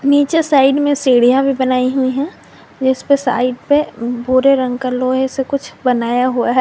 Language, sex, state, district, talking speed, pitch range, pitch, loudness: Hindi, female, Jharkhand, Garhwa, 165 wpm, 250-280 Hz, 260 Hz, -15 LUFS